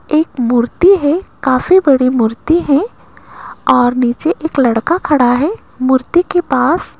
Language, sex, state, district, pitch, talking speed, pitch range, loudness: Hindi, female, Rajasthan, Jaipur, 280 Hz, 135 wpm, 250-340 Hz, -13 LUFS